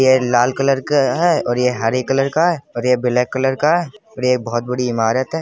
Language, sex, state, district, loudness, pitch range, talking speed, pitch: Hindi, male, Uttar Pradesh, Budaun, -17 LUFS, 125-140 Hz, 265 wpm, 130 Hz